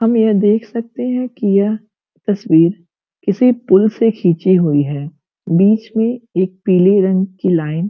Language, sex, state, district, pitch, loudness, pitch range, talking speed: Hindi, female, Uttar Pradesh, Gorakhpur, 200 Hz, -15 LUFS, 180-225 Hz, 165 wpm